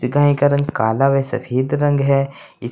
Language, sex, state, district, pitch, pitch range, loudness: Hindi, male, Uttar Pradesh, Saharanpur, 135 Hz, 125-145 Hz, -17 LUFS